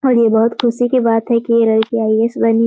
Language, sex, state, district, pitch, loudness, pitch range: Hindi, female, Bihar, Begusarai, 230 Hz, -14 LUFS, 225-240 Hz